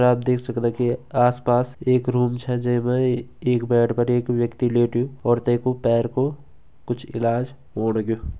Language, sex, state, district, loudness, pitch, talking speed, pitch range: Garhwali, male, Uttarakhand, Tehri Garhwal, -22 LUFS, 120 Hz, 180 wpm, 120-125 Hz